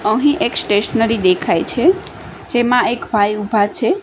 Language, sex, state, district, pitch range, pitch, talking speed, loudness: Gujarati, female, Gujarat, Gandhinagar, 205-250 Hz, 230 Hz, 150 wpm, -16 LUFS